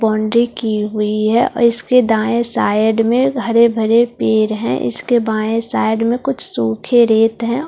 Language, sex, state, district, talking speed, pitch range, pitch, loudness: Hindi, female, Bihar, Katihar, 155 wpm, 215-235 Hz, 225 Hz, -15 LUFS